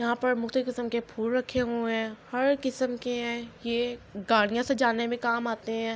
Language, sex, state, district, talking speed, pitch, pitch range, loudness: Urdu, female, Andhra Pradesh, Anantapur, 210 wpm, 235 Hz, 230-250 Hz, -28 LUFS